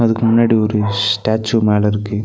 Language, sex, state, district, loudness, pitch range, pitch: Tamil, male, Tamil Nadu, Nilgiris, -15 LUFS, 105-115 Hz, 110 Hz